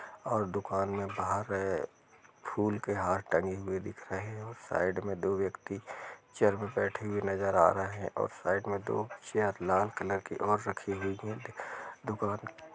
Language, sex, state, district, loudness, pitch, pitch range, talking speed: Hindi, male, Chhattisgarh, Rajnandgaon, -33 LUFS, 100 Hz, 95-105 Hz, 180 wpm